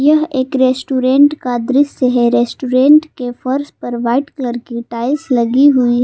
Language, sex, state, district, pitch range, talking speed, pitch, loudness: Hindi, female, Jharkhand, Palamu, 245-280 Hz, 170 wpm, 255 Hz, -14 LUFS